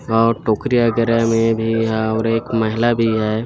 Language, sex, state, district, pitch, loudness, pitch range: Hindi, male, Chhattisgarh, Bilaspur, 115 Hz, -17 LUFS, 110-115 Hz